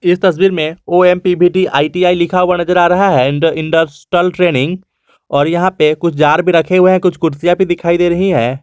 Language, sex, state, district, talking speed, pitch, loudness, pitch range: Hindi, male, Jharkhand, Garhwa, 215 wpm, 175 Hz, -12 LUFS, 160-180 Hz